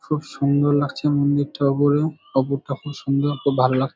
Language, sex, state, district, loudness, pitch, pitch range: Bengali, male, West Bengal, Kolkata, -21 LUFS, 140 Hz, 140-145 Hz